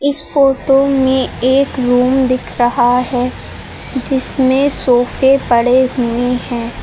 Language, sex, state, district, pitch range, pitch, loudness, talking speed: Hindi, female, Uttar Pradesh, Lucknow, 245-270 Hz, 255 Hz, -14 LUFS, 115 wpm